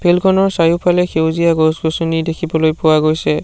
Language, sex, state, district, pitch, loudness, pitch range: Assamese, male, Assam, Sonitpur, 165 Hz, -14 LUFS, 160-175 Hz